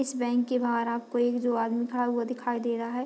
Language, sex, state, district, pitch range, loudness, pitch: Hindi, female, Bihar, Madhepura, 235-245 Hz, -28 LUFS, 240 Hz